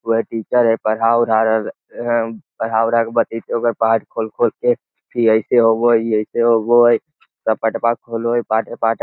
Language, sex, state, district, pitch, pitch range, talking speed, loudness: Magahi, male, Bihar, Lakhisarai, 115 Hz, 115-120 Hz, 215 wpm, -17 LUFS